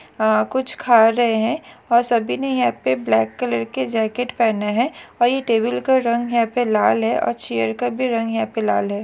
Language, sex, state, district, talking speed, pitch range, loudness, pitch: Hindi, female, Maharashtra, Solapur, 210 wpm, 215-245 Hz, -19 LUFS, 230 Hz